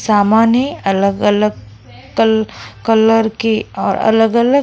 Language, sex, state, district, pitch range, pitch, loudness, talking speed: Hindi, female, Goa, North and South Goa, 205-225 Hz, 220 Hz, -14 LUFS, 80 wpm